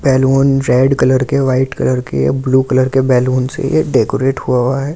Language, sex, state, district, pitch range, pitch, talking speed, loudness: Hindi, male, Delhi, New Delhi, 130-135 Hz, 130 Hz, 195 wpm, -13 LUFS